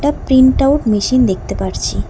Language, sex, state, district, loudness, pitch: Bengali, female, West Bengal, Alipurduar, -13 LUFS, 220 Hz